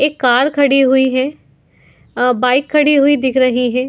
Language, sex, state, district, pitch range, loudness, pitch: Hindi, female, Uttar Pradesh, Etah, 255-285 Hz, -13 LUFS, 265 Hz